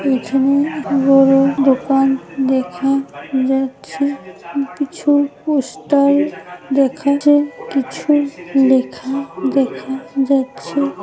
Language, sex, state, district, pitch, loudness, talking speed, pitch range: Bengali, female, West Bengal, Jalpaiguri, 275 Hz, -16 LUFS, 65 wpm, 265-280 Hz